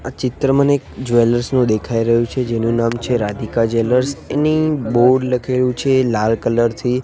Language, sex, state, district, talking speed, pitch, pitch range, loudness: Gujarati, male, Gujarat, Gandhinagar, 180 wpm, 125 Hz, 115-130 Hz, -17 LUFS